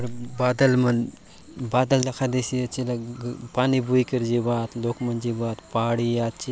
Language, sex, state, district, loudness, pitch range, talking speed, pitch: Halbi, male, Chhattisgarh, Bastar, -24 LUFS, 120-125 Hz, 175 wpm, 120 Hz